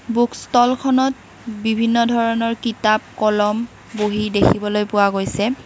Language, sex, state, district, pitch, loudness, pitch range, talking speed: Assamese, female, Assam, Kamrup Metropolitan, 225 Hz, -18 LUFS, 210-235 Hz, 105 wpm